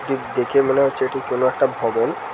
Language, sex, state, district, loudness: Bengali, male, West Bengal, Kolkata, -20 LUFS